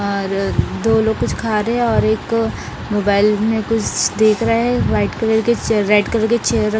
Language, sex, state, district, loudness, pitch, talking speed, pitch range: Hindi, female, Bihar, Patna, -17 LUFS, 220 Hz, 205 wpm, 210-225 Hz